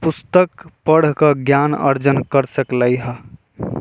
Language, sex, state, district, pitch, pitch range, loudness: Bajjika, male, Bihar, Vaishali, 140 Hz, 130-150 Hz, -16 LUFS